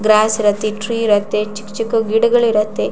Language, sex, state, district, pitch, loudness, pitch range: Kannada, female, Karnataka, Shimoga, 215 Hz, -16 LUFS, 210-225 Hz